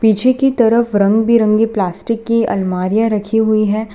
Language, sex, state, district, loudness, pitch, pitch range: Hindi, female, Gujarat, Valsad, -14 LUFS, 220 Hz, 210-230 Hz